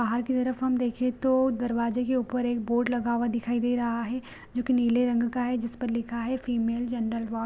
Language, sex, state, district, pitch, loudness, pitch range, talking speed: Hindi, female, Bihar, Supaul, 240 Hz, -27 LUFS, 235-250 Hz, 240 wpm